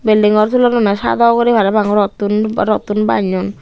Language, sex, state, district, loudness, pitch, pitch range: Chakma, female, Tripura, Unakoti, -13 LUFS, 210 Hz, 205-230 Hz